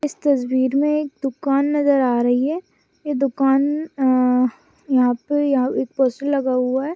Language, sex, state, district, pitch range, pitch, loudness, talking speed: Hindi, female, Maharashtra, Pune, 255-290 Hz, 275 Hz, -19 LUFS, 155 wpm